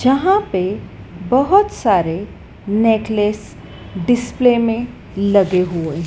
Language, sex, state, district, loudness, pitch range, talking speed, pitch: Hindi, female, Madhya Pradesh, Dhar, -16 LUFS, 185-245 Hz, 100 wpm, 215 Hz